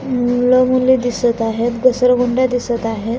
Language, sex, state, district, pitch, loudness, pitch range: Marathi, female, Maharashtra, Aurangabad, 245 Hz, -15 LUFS, 235-255 Hz